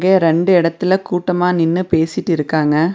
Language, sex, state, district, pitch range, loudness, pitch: Tamil, female, Tamil Nadu, Nilgiris, 165-180 Hz, -15 LUFS, 175 Hz